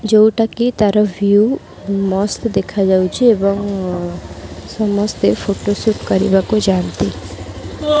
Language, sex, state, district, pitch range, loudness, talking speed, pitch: Odia, female, Odisha, Khordha, 185-215 Hz, -16 LUFS, 80 wpm, 200 Hz